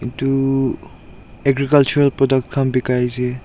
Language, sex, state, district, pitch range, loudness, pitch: Nagamese, male, Nagaland, Dimapur, 125-135 Hz, -17 LUFS, 135 Hz